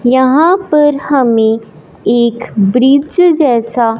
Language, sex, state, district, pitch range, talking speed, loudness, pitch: Hindi, male, Punjab, Fazilka, 230-295 Hz, 90 wpm, -11 LUFS, 250 Hz